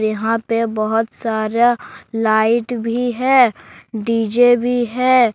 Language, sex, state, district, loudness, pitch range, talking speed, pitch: Hindi, male, Jharkhand, Deoghar, -17 LUFS, 225-245 Hz, 110 wpm, 230 Hz